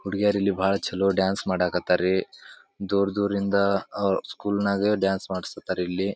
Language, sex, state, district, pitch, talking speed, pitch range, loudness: Kannada, male, Karnataka, Bijapur, 100 Hz, 145 wpm, 95-100 Hz, -25 LUFS